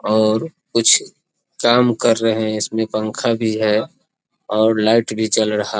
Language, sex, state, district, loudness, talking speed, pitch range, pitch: Hindi, male, Bihar, East Champaran, -17 LUFS, 165 wpm, 110-115 Hz, 110 Hz